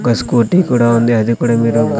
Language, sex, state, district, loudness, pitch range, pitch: Telugu, male, Andhra Pradesh, Sri Satya Sai, -13 LUFS, 115-120 Hz, 120 Hz